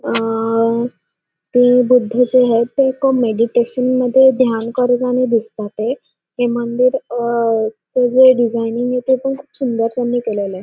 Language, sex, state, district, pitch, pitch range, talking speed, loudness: Marathi, female, Maharashtra, Dhule, 245 Hz, 230-255 Hz, 140 wpm, -15 LUFS